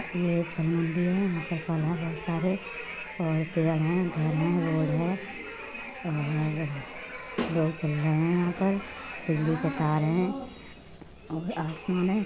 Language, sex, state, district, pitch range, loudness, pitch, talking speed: Hindi, male, Uttar Pradesh, Budaun, 160-175 Hz, -29 LUFS, 165 Hz, 150 wpm